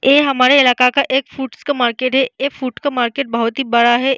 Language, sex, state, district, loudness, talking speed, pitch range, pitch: Hindi, female, Bihar, Vaishali, -15 LUFS, 245 wpm, 245-275 Hz, 265 Hz